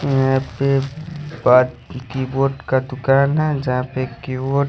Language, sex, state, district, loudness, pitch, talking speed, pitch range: Hindi, male, Odisha, Khordha, -19 LUFS, 135 Hz, 115 wpm, 130-140 Hz